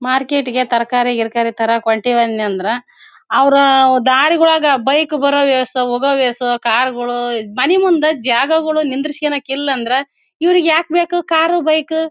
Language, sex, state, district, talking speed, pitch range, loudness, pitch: Kannada, female, Karnataka, Bellary, 135 wpm, 245-310 Hz, -14 LUFS, 270 Hz